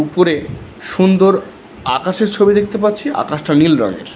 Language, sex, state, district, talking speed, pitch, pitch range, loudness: Bengali, male, West Bengal, Alipurduar, 130 wpm, 185 Hz, 150-205 Hz, -14 LUFS